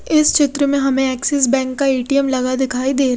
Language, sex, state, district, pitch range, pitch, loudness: Hindi, female, Odisha, Khordha, 260-280 Hz, 270 Hz, -16 LUFS